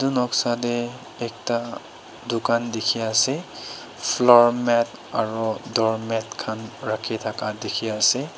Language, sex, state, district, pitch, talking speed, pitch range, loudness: Nagamese, female, Nagaland, Dimapur, 115 Hz, 115 wpm, 110-120 Hz, -23 LUFS